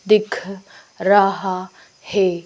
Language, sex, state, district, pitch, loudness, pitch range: Hindi, female, Madhya Pradesh, Bhopal, 195 Hz, -19 LUFS, 190-200 Hz